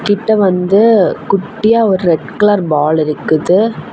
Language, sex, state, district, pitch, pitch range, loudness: Tamil, female, Tamil Nadu, Kanyakumari, 195 Hz, 170-215 Hz, -12 LUFS